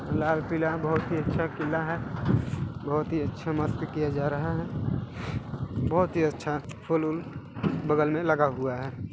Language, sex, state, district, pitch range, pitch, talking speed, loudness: Hindi, male, Chhattisgarh, Balrampur, 135-160 Hz, 150 Hz, 165 wpm, -29 LUFS